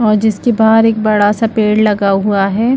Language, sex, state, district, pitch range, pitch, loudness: Hindi, female, Chhattisgarh, Bilaspur, 205-225 Hz, 215 Hz, -12 LUFS